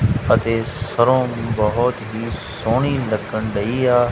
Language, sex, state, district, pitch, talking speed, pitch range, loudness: Punjabi, male, Punjab, Kapurthala, 115 Hz, 115 wpm, 110-120 Hz, -19 LUFS